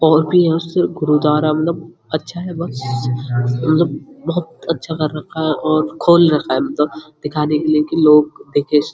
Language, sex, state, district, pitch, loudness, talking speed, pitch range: Hindi, male, Uttarakhand, Uttarkashi, 155 Hz, -17 LUFS, 175 wpm, 150-165 Hz